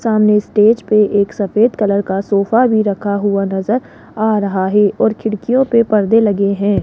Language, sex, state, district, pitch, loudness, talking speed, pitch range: Hindi, female, Rajasthan, Jaipur, 210 Hz, -14 LUFS, 185 wpm, 200-220 Hz